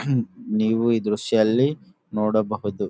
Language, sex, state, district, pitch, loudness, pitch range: Kannada, male, Karnataka, Bellary, 110 Hz, -22 LUFS, 110-125 Hz